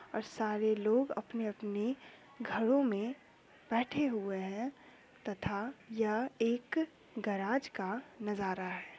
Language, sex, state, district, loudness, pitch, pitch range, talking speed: Hindi, female, Bihar, Sitamarhi, -36 LUFS, 225 Hz, 205-255 Hz, 105 wpm